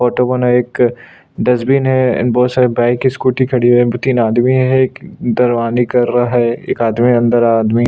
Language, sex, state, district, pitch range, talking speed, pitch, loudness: Hindi, male, Chhattisgarh, Sukma, 120-125 Hz, 190 wpm, 125 Hz, -13 LUFS